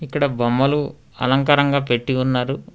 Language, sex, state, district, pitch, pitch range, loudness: Telugu, male, Telangana, Hyderabad, 135 Hz, 125-145 Hz, -19 LUFS